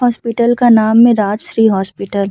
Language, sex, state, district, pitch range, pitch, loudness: Hindi, female, Uttar Pradesh, Budaun, 205-235 Hz, 225 Hz, -12 LUFS